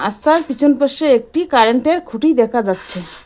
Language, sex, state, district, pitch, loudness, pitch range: Bengali, female, West Bengal, Cooch Behar, 260 Hz, -15 LUFS, 225-305 Hz